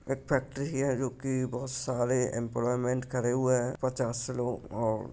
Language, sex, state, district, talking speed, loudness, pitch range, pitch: Hindi, male, Bihar, Lakhisarai, 175 wpm, -31 LUFS, 120-130 Hz, 130 Hz